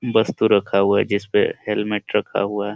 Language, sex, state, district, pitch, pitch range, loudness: Hindi, male, Bihar, Jamui, 100 Hz, 100-105 Hz, -20 LUFS